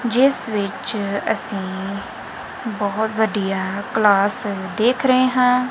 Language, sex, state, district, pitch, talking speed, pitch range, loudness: Punjabi, female, Punjab, Kapurthala, 210 Hz, 95 wpm, 200-240 Hz, -20 LUFS